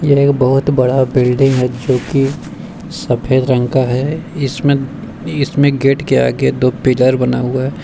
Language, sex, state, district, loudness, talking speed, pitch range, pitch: Hindi, male, Bihar, Bhagalpur, -14 LUFS, 170 wpm, 125-140 Hz, 130 Hz